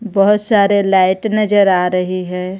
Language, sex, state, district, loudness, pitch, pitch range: Hindi, female, Jharkhand, Ranchi, -14 LUFS, 195 Hz, 185-205 Hz